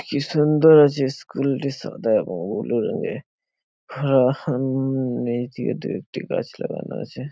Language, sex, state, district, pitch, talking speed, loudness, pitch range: Bengali, male, West Bengal, Paschim Medinipur, 135 Hz, 115 wpm, -21 LUFS, 130-145 Hz